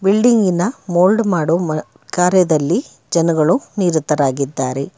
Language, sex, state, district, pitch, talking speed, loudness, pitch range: Kannada, male, Karnataka, Bangalore, 170 Hz, 85 wpm, -16 LUFS, 150-185 Hz